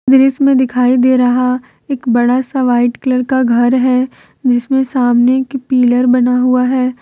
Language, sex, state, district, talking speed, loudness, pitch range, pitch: Hindi, female, Jharkhand, Deoghar, 170 wpm, -12 LUFS, 250-260 Hz, 255 Hz